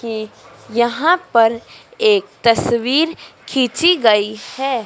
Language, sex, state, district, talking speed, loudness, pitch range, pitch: Hindi, female, Madhya Pradesh, Dhar, 100 wpm, -16 LUFS, 230-325 Hz, 240 Hz